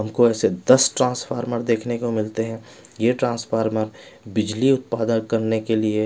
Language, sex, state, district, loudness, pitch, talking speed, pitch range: Hindi, male, Bihar, West Champaran, -21 LUFS, 115 Hz, 150 wpm, 110-120 Hz